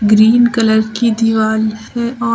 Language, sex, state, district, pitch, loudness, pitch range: Hindi, female, Uttar Pradesh, Lucknow, 225 Hz, -13 LUFS, 220-235 Hz